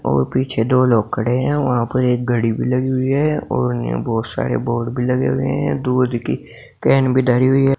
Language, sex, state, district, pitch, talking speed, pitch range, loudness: Hindi, male, Uttar Pradesh, Saharanpur, 125 Hz, 240 wpm, 115-130 Hz, -18 LUFS